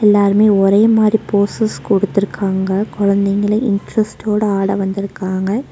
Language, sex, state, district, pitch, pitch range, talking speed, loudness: Tamil, female, Tamil Nadu, Nilgiris, 200 Hz, 195-215 Hz, 95 wpm, -15 LUFS